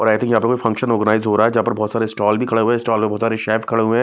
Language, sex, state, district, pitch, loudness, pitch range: Hindi, male, Maharashtra, Mumbai Suburban, 115 Hz, -17 LUFS, 110-115 Hz